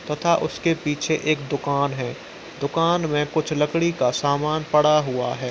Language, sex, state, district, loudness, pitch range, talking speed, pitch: Hindi, male, Uttar Pradesh, Muzaffarnagar, -22 LUFS, 140-160 Hz, 165 wpm, 150 Hz